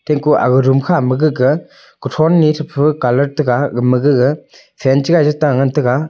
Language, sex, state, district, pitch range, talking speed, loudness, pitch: Wancho, male, Arunachal Pradesh, Longding, 130-155 Hz, 175 wpm, -14 LUFS, 145 Hz